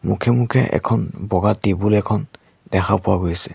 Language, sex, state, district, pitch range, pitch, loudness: Assamese, male, Assam, Sonitpur, 95-110 Hz, 105 Hz, -19 LUFS